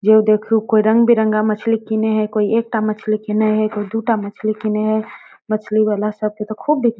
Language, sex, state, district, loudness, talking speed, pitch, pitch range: Maithili, female, Bihar, Darbhanga, -17 LUFS, 230 wpm, 215 Hz, 215-220 Hz